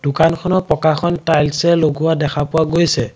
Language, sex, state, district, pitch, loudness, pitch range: Assamese, male, Assam, Sonitpur, 160 Hz, -15 LUFS, 150-170 Hz